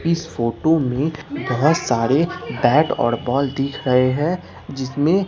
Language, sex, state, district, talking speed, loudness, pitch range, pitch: Hindi, male, Bihar, Katihar, 135 wpm, -19 LUFS, 125-160 Hz, 140 Hz